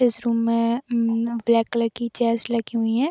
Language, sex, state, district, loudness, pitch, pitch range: Hindi, female, Jharkhand, Sahebganj, -22 LUFS, 235 Hz, 230-235 Hz